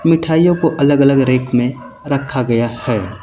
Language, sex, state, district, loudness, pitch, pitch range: Hindi, male, Uttar Pradesh, Lucknow, -14 LUFS, 135 Hz, 120-145 Hz